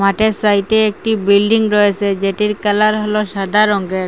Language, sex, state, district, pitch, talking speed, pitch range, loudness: Bengali, female, Assam, Hailakandi, 210 Hz, 145 wpm, 200-215 Hz, -14 LUFS